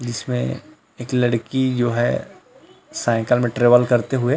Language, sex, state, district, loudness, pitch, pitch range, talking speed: Hindi, male, Chhattisgarh, Rajnandgaon, -19 LUFS, 120 Hz, 115-125 Hz, 150 wpm